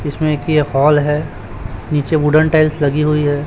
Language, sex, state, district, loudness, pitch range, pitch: Hindi, male, Chhattisgarh, Raipur, -15 LUFS, 145-155 Hz, 150 Hz